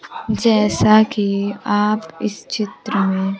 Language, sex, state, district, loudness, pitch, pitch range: Hindi, female, Bihar, Kaimur, -18 LUFS, 210 Hz, 200-215 Hz